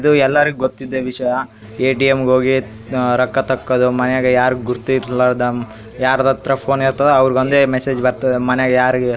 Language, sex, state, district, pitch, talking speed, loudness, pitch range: Kannada, male, Karnataka, Raichur, 130 Hz, 145 wpm, -16 LUFS, 125-135 Hz